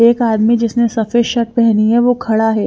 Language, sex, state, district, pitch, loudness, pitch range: Hindi, female, Haryana, Jhajjar, 230 Hz, -13 LUFS, 225-235 Hz